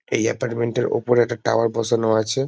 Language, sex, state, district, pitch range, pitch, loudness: Bengali, male, West Bengal, Jalpaiguri, 115-120 Hz, 115 Hz, -21 LUFS